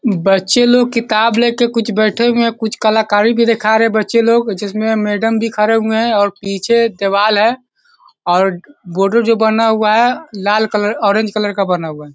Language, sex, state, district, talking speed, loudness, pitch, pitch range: Hindi, male, Bihar, Sitamarhi, 195 wpm, -13 LUFS, 220 Hz, 205-230 Hz